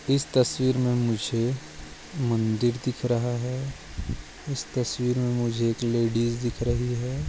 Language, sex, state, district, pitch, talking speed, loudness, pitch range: Hindi, male, Goa, North and South Goa, 120 Hz, 140 wpm, -27 LUFS, 115-125 Hz